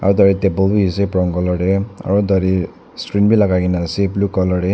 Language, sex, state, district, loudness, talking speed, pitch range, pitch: Nagamese, male, Nagaland, Dimapur, -16 LUFS, 215 wpm, 90-100 Hz, 95 Hz